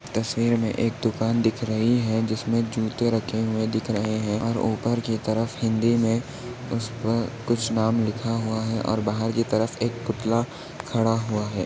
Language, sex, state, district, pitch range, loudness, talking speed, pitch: Hindi, male, Maharashtra, Dhule, 110-115 Hz, -25 LUFS, 180 wpm, 115 Hz